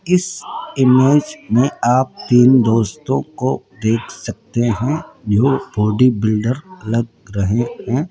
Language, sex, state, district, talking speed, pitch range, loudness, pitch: Hindi, female, Rajasthan, Jaipur, 120 wpm, 115-135 Hz, -17 LUFS, 125 Hz